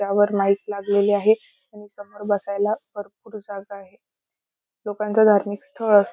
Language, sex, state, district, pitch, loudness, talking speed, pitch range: Marathi, female, Maharashtra, Solapur, 205 Hz, -21 LUFS, 145 wpm, 200-210 Hz